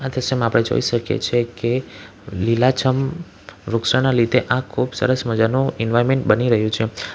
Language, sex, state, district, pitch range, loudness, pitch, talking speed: Gujarati, male, Gujarat, Valsad, 115-130 Hz, -19 LUFS, 120 Hz, 140 wpm